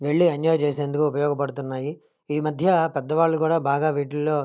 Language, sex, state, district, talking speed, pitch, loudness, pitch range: Telugu, male, Andhra Pradesh, Krishna, 135 wpm, 150 Hz, -23 LUFS, 145-160 Hz